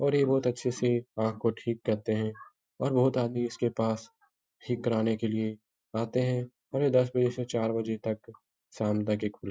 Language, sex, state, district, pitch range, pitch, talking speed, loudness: Hindi, male, Bihar, Jahanabad, 110-125 Hz, 115 Hz, 215 wpm, -30 LUFS